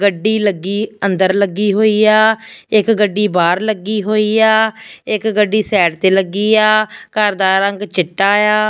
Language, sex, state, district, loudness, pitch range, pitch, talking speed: Punjabi, female, Punjab, Fazilka, -14 LUFS, 195-215 Hz, 210 Hz, 160 wpm